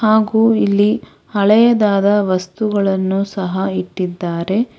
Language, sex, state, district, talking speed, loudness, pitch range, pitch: Kannada, female, Karnataka, Bangalore, 75 wpm, -16 LUFS, 190-215 Hz, 200 Hz